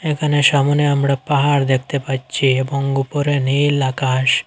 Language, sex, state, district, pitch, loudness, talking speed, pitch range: Bengali, male, Assam, Hailakandi, 140 Hz, -17 LUFS, 135 wpm, 130-145 Hz